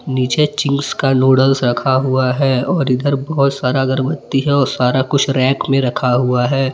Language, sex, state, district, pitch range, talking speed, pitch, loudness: Hindi, male, Jharkhand, Palamu, 130-140 Hz, 185 wpm, 135 Hz, -15 LUFS